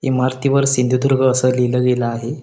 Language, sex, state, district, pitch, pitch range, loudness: Marathi, male, Maharashtra, Sindhudurg, 130 Hz, 125-135 Hz, -16 LUFS